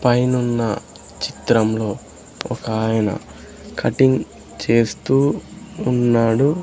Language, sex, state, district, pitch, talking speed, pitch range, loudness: Telugu, male, Andhra Pradesh, Sri Satya Sai, 120 Hz, 55 wpm, 110-125 Hz, -19 LUFS